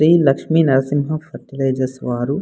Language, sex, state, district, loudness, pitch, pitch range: Telugu, male, Andhra Pradesh, Anantapur, -18 LUFS, 140 Hz, 130-155 Hz